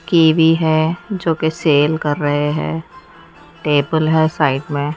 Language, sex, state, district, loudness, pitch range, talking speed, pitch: Hindi, female, Odisha, Nuapada, -16 LUFS, 145-160 Hz, 135 wpm, 155 Hz